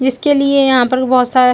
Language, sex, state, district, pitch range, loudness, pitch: Hindi, female, Chhattisgarh, Bilaspur, 255-275 Hz, -12 LUFS, 260 Hz